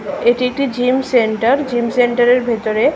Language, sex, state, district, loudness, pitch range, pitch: Bengali, female, West Bengal, Malda, -15 LUFS, 235-255 Hz, 245 Hz